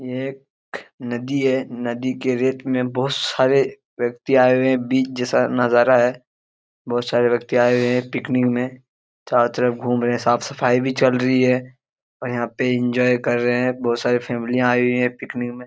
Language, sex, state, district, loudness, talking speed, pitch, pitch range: Hindi, male, Jharkhand, Jamtara, -20 LUFS, 205 wpm, 125 Hz, 120-130 Hz